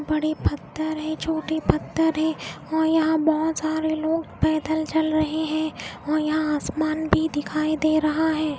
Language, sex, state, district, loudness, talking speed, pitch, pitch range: Hindi, female, Odisha, Khordha, -24 LUFS, 160 wpm, 315 Hz, 310-315 Hz